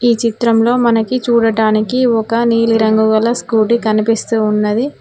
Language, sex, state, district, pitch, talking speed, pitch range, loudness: Telugu, female, Telangana, Mahabubabad, 230 Hz, 120 wpm, 220-235 Hz, -13 LUFS